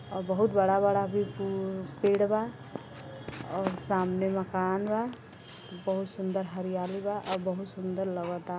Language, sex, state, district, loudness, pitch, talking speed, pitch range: Bhojpuri, female, Uttar Pradesh, Gorakhpur, -30 LUFS, 190 Hz, 135 wpm, 185-200 Hz